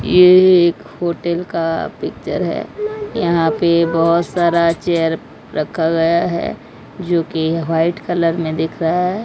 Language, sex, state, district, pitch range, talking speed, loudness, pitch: Hindi, female, Odisha, Malkangiri, 165-175 Hz, 145 wpm, -16 LUFS, 170 Hz